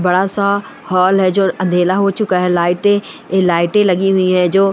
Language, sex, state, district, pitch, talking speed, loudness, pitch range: Angika, male, Bihar, Samastipur, 185 Hz, 190 wpm, -14 LUFS, 180-195 Hz